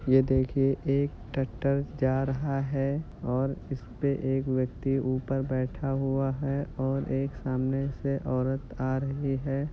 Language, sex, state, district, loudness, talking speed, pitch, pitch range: Hindi, male, Uttar Pradesh, Jyotiba Phule Nagar, -29 LUFS, 140 wpm, 135 Hz, 130-140 Hz